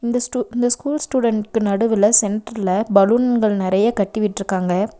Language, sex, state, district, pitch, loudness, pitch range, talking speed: Tamil, female, Tamil Nadu, Nilgiris, 215 Hz, -18 LUFS, 200-235 Hz, 130 wpm